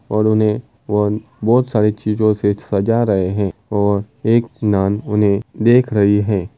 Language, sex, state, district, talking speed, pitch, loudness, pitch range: Hindi, male, Uttar Pradesh, Varanasi, 155 wpm, 105 Hz, -17 LUFS, 100-115 Hz